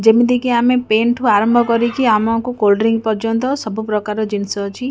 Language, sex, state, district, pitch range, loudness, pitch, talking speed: Odia, female, Odisha, Khordha, 215-240 Hz, -16 LUFS, 225 Hz, 185 wpm